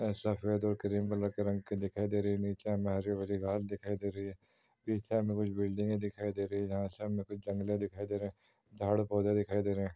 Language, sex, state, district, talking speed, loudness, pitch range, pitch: Hindi, male, Uttar Pradesh, Muzaffarnagar, 230 wpm, -36 LUFS, 100-105 Hz, 100 Hz